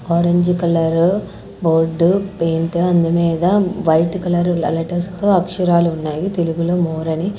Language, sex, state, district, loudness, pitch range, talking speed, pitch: Telugu, female, Andhra Pradesh, Annamaya, -17 LUFS, 165-180 Hz, 120 wpm, 170 Hz